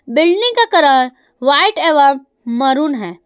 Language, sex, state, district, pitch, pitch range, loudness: Hindi, female, Jharkhand, Ranchi, 280 Hz, 260-330 Hz, -12 LUFS